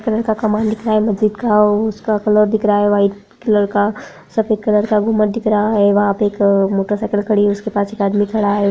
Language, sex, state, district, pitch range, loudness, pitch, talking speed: Hindi, female, Bihar, Darbhanga, 205-215 Hz, -16 LUFS, 210 Hz, 255 wpm